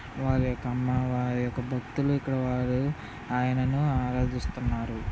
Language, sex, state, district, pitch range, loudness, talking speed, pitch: Telugu, male, Andhra Pradesh, Visakhapatnam, 125-130 Hz, -29 LUFS, 60 wpm, 125 Hz